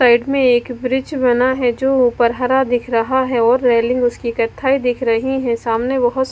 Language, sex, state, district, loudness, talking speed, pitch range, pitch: Hindi, female, Maharashtra, Mumbai Suburban, -16 LUFS, 200 wpm, 235-260 Hz, 245 Hz